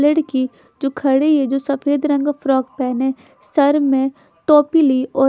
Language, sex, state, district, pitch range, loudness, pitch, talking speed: Hindi, female, Bihar, Katihar, 265-295 Hz, -17 LUFS, 280 Hz, 170 wpm